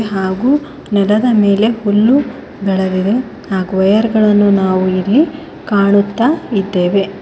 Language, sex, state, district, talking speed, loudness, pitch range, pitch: Kannada, female, Karnataka, Koppal, 100 wpm, -13 LUFS, 195-235 Hz, 205 Hz